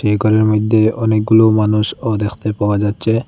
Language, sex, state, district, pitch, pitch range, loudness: Bengali, male, Assam, Hailakandi, 110 Hz, 105-110 Hz, -14 LUFS